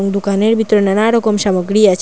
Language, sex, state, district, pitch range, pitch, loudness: Bengali, female, Assam, Hailakandi, 195-215 Hz, 205 Hz, -13 LUFS